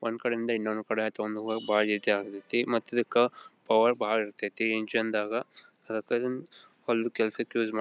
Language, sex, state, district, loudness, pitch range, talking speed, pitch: Kannada, male, Karnataka, Belgaum, -29 LUFS, 110-120 Hz, 115 wpm, 110 Hz